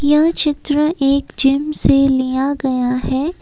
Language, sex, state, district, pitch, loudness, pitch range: Hindi, female, Assam, Kamrup Metropolitan, 280 Hz, -16 LUFS, 270-300 Hz